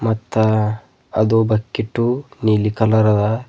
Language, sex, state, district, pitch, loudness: Kannada, male, Karnataka, Bidar, 110 Hz, -18 LUFS